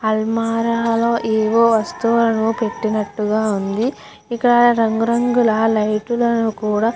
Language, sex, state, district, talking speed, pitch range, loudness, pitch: Telugu, female, Andhra Pradesh, Guntur, 95 wpm, 220-235 Hz, -17 LUFS, 225 Hz